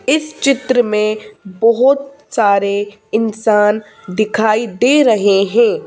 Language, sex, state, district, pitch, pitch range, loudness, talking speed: Hindi, female, Madhya Pradesh, Bhopal, 220 Hz, 210-265 Hz, -14 LUFS, 100 wpm